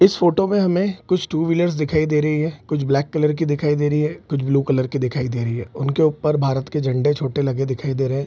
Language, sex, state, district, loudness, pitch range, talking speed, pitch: Hindi, male, Bihar, Araria, -20 LUFS, 135-155 Hz, 275 wpm, 150 Hz